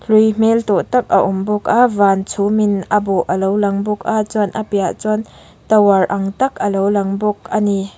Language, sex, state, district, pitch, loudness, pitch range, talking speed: Mizo, female, Mizoram, Aizawl, 205 Hz, -16 LUFS, 195-215 Hz, 225 wpm